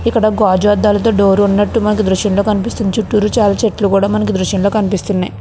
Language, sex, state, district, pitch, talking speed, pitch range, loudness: Telugu, female, Andhra Pradesh, Krishna, 205 Hz, 235 wpm, 195-215 Hz, -13 LUFS